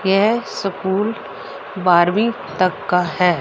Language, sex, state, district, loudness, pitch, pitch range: Hindi, female, Haryana, Rohtak, -18 LUFS, 190 Hz, 180-205 Hz